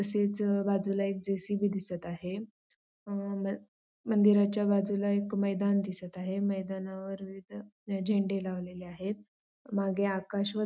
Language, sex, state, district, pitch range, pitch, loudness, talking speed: Marathi, female, Maharashtra, Sindhudurg, 195-205 Hz, 200 Hz, -32 LUFS, 140 wpm